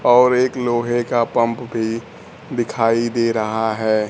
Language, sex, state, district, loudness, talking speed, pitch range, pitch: Hindi, male, Bihar, Kaimur, -19 LUFS, 145 wpm, 115-120 Hz, 115 Hz